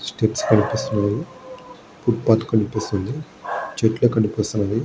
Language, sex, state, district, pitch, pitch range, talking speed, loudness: Telugu, male, Andhra Pradesh, Guntur, 110 Hz, 105-135 Hz, 75 wpm, -21 LUFS